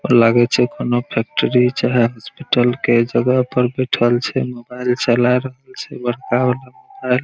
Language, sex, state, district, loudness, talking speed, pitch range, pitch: Maithili, male, Bihar, Araria, -17 LUFS, 155 wpm, 120-125 Hz, 125 Hz